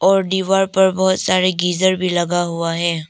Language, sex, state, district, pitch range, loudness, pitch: Hindi, female, Arunachal Pradesh, Papum Pare, 175-190 Hz, -17 LUFS, 185 Hz